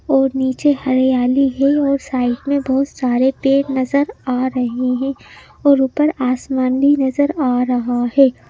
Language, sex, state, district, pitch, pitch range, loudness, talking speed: Hindi, female, Madhya Pradesh, Bhopal, 265 Hz, 255-275 Hz, -16 LUFS, 150 wpm